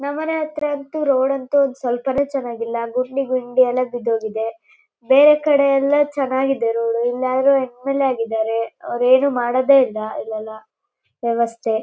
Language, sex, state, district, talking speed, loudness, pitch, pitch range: Kannada, female, Karnataka, Shimoga, 115 wpm, -19 LUFS, 255 Hz, 230-275 Hz